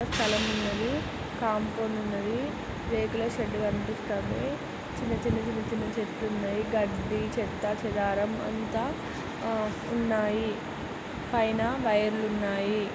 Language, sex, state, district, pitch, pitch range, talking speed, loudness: Telugu, female, Andhra Pradesh, Srikakulam, 215 Hz, 210-225 Hz, 100 wpm, -30 LUFS